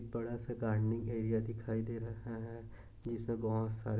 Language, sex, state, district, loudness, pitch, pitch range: Hindi, male, Maharashtra, Dhule, -39 LUFS, 115 Hz, 110-115 Hz